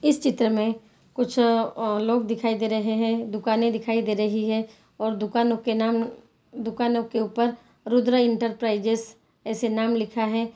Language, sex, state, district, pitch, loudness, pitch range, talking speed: Hindi, female, Bihar, Saran, 225 Hz, -24 LUFS, 220-235 Hz, 160 wpm